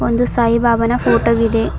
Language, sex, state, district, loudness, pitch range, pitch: Kannada, female, Karnataka, Bidar, -15 LUFS, 230-235 Hz, 230 Hz